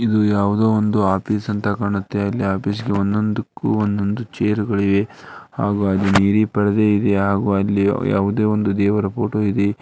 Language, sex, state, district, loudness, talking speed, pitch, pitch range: Kannada, male, Karnataka, Dharwad, -19 LUFS, 155 wpm, 105 Hz, 100-105 Hz